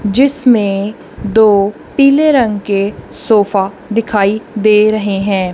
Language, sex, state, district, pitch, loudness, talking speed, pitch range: Hindi, female, Punjab, Kapurthala, 210 Hz, -12 LUFS, 110 wpm, 200-225 Hz